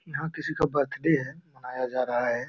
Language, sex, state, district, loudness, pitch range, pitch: Hindi, male, Bihar, Jamui, -28 LUFS, 125-155 Hz, 145 Hz